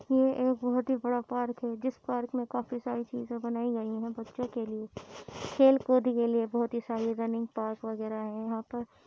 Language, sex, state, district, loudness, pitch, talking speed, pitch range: Hindi, female, Uttar Pradesh, Muzaffarnagar, -31 LUFS, 235 Hz, 220 wpm, 230-250 Hz